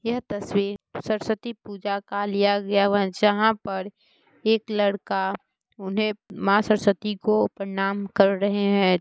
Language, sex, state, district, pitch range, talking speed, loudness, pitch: Hindi, female, Bihar, Muzaffarpur, 200-215 Hz, 145 wpm, -24 LUFS, 200 Hz